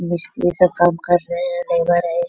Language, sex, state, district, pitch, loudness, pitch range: Hindi, female, Bihar, Bhagalpur, 175 Hz, -17 LUFS, 170-175 Hz